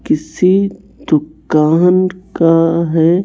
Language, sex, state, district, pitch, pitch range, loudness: Hindi, female, Chhattisgarh, Raipur, 170 Hz, 160-185 Hz, -13 LUFS